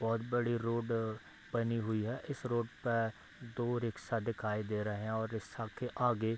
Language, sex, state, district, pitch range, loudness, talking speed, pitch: Hindi, male, Bihar, Bhagalpur, 110-120 Hz, -37 LUFS, 190 wpm, 115 Hz